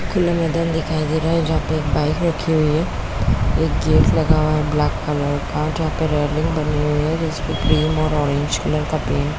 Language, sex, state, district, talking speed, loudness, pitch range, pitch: Hindi, female, Bihar, Kishanganj, 225 wpm, -19 LUFS, 150-160 Hz, 155 Hz